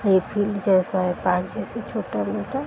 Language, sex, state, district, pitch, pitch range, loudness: Hindi, female, Bihar, Araria, 190 Hz, 185-205 Hz, -23 LUFS